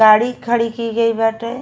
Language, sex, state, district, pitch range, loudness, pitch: Bhojpuri, female, Uttar Pradesh, Ghazipur, 225-235 Hz, -17 LUFS, 230 Hz